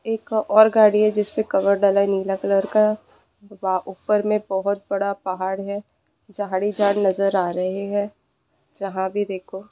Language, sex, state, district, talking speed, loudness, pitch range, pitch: Hindi, female, West Bengal, Purulia, 180 wpm, -21 LUFS, 195-210 Hz, 200 Hz